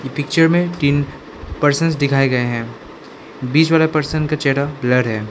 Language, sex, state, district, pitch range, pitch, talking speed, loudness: Hindi, male, Arunachal Pradesh, Lower Dibang Valley, 125-155 Hz, 145 Hz, 160 wpm, -17 LUFS